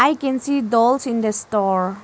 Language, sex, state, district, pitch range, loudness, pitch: English, female, Arunachal Pradesh, Lower Dibang Valley, 205-265 Hz, -19 LUFS, 230 Hz